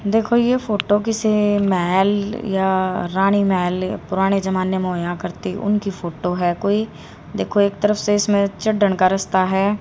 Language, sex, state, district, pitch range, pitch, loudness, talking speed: Hindi, female, Haryana, Rohtak, 185-210 Hz, 195 Hz, -19 LUFS, 160 wpm